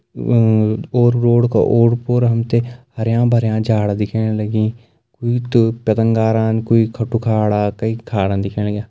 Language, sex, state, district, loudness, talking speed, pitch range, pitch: Garhwali, male, Uttarakhand, Uttarkashi, -16 LUFS, 150 wpm, 110-120 Hz, 115 Hz